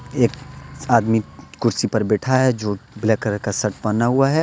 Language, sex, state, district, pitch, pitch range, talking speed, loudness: Hindi, male, Jharkhand, Deoghar, 115 Hz, 105-130 Hz, 190 wpm, -20 LUFS